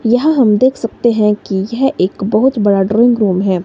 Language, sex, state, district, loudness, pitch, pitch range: Hindi, female, Himachal Pradesh, Shimla, -13 LUFS, 220 Hz, 195-240 Hz